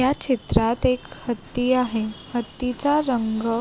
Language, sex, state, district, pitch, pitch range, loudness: Marathi, female, Maharashtra, Sindhudurg, 245 Hz, 230-255 Hz, -22 LUFS